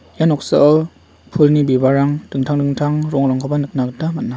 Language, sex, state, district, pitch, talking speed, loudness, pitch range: Garo, male, Meghalaya, West Garo Hills, 145 Hz, 135 wpm, -16 LUFS, 135-150 Hz